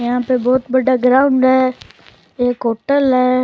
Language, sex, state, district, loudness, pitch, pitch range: Rajasthani, male, Rajasthan, Churu, -15 LUFS, 255 Hz, 250-260 Hz